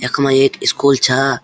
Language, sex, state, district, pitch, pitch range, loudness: Garhwali, male, Uttarakhand, Uttarkashi, 135 Hz, 135-140 Hz, -14 LUFS